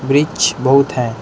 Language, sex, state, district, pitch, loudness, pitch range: Hindi, male, Jharkhand, Deoghar, 135 Hz, -14 LUFS, 125-145 Hz